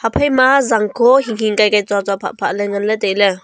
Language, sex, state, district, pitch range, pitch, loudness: Wancho, female, Arunachal Pradesh, Longding, 200-235 Hz, 215 Hz, -15 LUFS